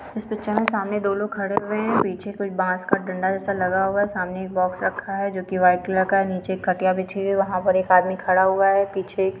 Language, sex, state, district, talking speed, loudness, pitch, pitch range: Hindi, female, Andhra Pradesh, Krishna, 275 wpm, -22 LUFS, 190 Hz, 185-200 Hz